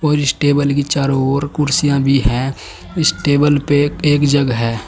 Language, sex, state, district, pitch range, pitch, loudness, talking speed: Hindi, male, Uttar Pradesh, Saharanpur, 135-145 Hz, 145 Hz, -15 LUFS, 185 wpm